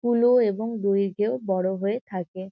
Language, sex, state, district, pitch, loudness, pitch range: Bengali, female, West Bengal, Kolkata, 205 Hz, -24 LUFS, 190-235 Hz